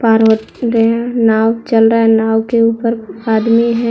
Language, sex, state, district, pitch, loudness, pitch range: Hindi, female, Jharkhand, Deoghar, 230 Hz, -13 LUFS, 225-230 Hz